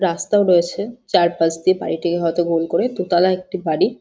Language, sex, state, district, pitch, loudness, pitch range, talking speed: Bengali, female, West Bengal, Jhargram, 175 Hz, -18 LUFS, 170-185 Hz, 180 wpm